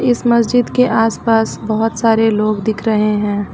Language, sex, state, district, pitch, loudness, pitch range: Hindi, female, Uttar Pradesh, Lucknow, 225 Hz, -15 LUFS, 215-230 Hz